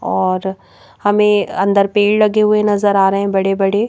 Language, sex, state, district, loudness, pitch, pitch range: Hindi, female, Madhya Pradesh, Bhopal, -14 LUFS, 200 Hz, 195-210 Hz